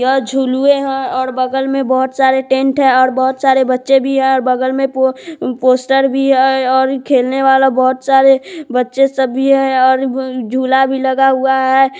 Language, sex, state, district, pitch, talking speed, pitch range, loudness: Hindi, female, Bihar, Sitamarhi, 265 Hz, 195 wpm, 260-270 Hz, -13 LUFS